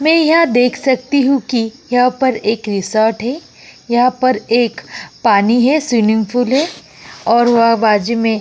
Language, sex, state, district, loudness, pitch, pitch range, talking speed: Hindi, female, Uttar Pradesh, Jyotiba Phule Nagar, -14 LUFS, 240 Hz, 225-260 Hz, 170 wpm